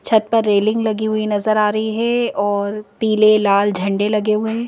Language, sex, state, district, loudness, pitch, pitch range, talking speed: Hindi, female, Madhya Pradesh, Bhopal, -17 LUFS, 215 Hz, 205-220 Hz, 205 wpm